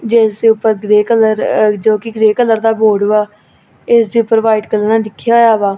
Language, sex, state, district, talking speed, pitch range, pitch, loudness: Punjabi, female, Punjab, Kapurthala, 230 wpm, 215-225 Hz, 220 Hz, -12 LUFS